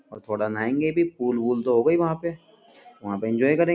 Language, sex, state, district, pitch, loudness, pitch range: Hindi, male, Uttar Pradesh, Jyotiba Phule Nagar, 145 Hz, -24 LUFS, 115-170 Hz